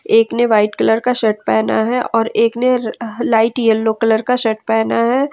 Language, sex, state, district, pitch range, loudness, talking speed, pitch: Hindi, female, Jharkhand, Ranchi, 220-240 Hz, -15 LUFS, 200 wpm, 225 Hz